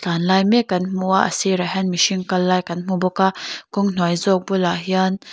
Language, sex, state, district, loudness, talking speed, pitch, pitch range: Mizo, female, Mizoram, Aizawl, -19 LUFS, 225 wpm, 185 Hz, 180-190 Hz